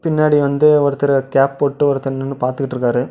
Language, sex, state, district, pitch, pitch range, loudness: Tamil, male, Tamil Nadu, Namakkal, 140 Hz, 135-145 Hz, -16 LUFS